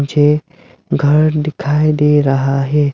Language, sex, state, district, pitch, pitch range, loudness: Hindi, male, Arunachal Pradesh, Lower Dibang Valley, 150 Hz, 140-150 Hz, -14 LUFS